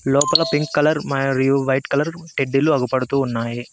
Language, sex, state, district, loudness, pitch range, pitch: Telugu, male, Telangana, Mahabubabad, -19 LUFS, 130-150 Hz, 135 Hz